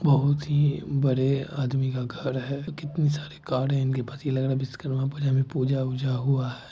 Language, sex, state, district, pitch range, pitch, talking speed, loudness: Hindi, male, Bihar, Gopalganj, 130-145 Hz, 135 Hz, 205 wpm, -26 LUFS